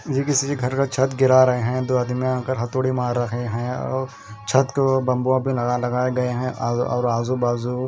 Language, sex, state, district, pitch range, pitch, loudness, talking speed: Hindi, male, Punjab, Kapurthala, 125-130 Hz, 125 Hz, -21 LUFS, 220 wpm